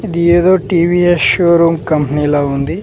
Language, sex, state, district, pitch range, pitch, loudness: Telugu, male, Andhra Pradesh, Sri Satya Sai, 150-175 Hz, 170 Hz, -12 LUFS